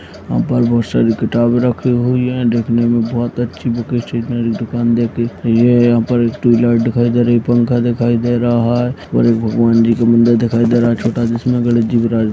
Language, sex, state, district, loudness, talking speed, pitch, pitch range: Hindi, male, Bihar, Purnia, -14 LUFS, 200 wpm, 120 Hz, 115-120 Hz